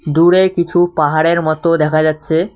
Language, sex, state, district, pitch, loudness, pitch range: Bengali, male, West Bengal, Cooch Behar, 165 Hz, -13 LUFS, 155-175 Hz